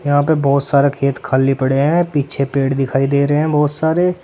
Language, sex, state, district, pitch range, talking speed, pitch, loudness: Hindi, male, Uttar Pradesh, Saharanpur, 135-150 Hz, 225 wpm, 140 Hz, -15 LUFS